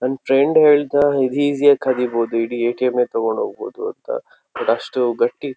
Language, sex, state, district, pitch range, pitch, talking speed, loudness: Kannada, male, Karnataka, Shimoga, 125-145 Hz, 135 Hz, 205 wpm, -18 LUFS